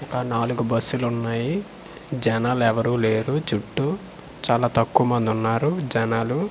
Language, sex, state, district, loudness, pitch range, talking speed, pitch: Telugu, male, Andhra Pradesh, Manyam, -23 LUFS, 115-140 Hz, 90 wpm, 120 Hz